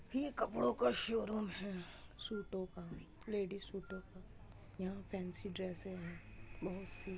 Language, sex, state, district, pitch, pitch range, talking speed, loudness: Hindi, female, Uttar Pradesh, Muzaffarnagar, 190 Hz, 170-200 Hz, 135 wpm, -42 LUFS